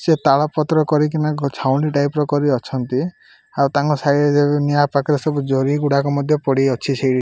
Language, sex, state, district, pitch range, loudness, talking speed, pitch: Odia, male, Odisha, Malkangiri, 135-150 Hz, -18 LUFS, 190 wpm, 145 Hz